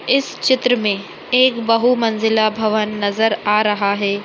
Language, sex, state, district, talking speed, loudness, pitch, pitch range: Hindi, male, Bihar, Madhepura, 140 wpm, -17 LUFS, 220 Hz, 205-240 Hz